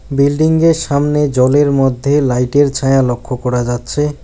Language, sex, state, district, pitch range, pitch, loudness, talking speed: Bengali, male, West Bengal, Alipurduar, 125-145 Hz, 140 Hz, -13 LUFS, 155 wpm